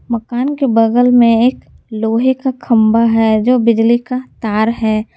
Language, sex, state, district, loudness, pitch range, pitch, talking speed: Hindi, female, Jharkhand, Garhwa, -13 LUFS, 225-250 Hz, 235 Hz, 160 wpm